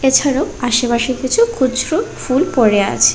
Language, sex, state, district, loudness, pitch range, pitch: Bengali, female, Tripura, West Tripura, -15 LUFS, 235-265 Hz, 255 Hz